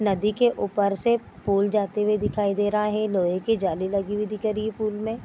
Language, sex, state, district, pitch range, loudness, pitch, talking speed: Hindi, female, Bihar, Vaishali, 200-215 Hz, -24 LUFS, 210 Hz, 250 wpm